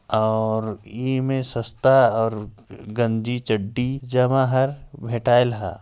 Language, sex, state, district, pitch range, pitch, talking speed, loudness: Hindi, male, Chhattisgarh, Jashpur, 110-130 Hz, 120 Hz, 105 wpm, -20 LUFS